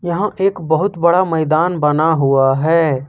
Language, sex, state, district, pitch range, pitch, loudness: Hindi, male, Jharkhand, Ranchi, 150-180 Hz, 160 Hz, -15 LUFS